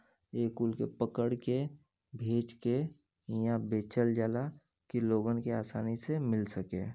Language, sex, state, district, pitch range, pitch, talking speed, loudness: Bhojpuri, male, Uttar Pradesh, Gorakhpur, 110-125 Hz, 115 Hz, 145 wpm, -35 LUFS